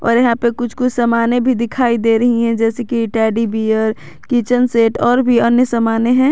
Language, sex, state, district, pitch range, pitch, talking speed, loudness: Hindi, female, Jharkhand, Garhwa, 230-245 Hz, 235 Hz, 210 wpm, -15 LUFS